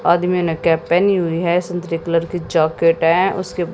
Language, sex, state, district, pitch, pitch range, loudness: Hindi, female, Haryana, Jhajjar, 170 Hz, 165-175 Hz, -17 LUFS